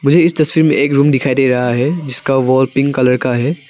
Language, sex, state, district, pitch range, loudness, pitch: Hindi, male, Arunachal Pradesh, Papum Pare, 130-145 Hz, -13 LUFS, 135 Hz